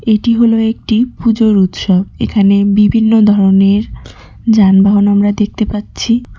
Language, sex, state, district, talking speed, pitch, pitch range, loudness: Bengali, female, West Bengal, Cooch Behar, 115 wpm, 210 Hz, 200-225 Hz, -11 LUFS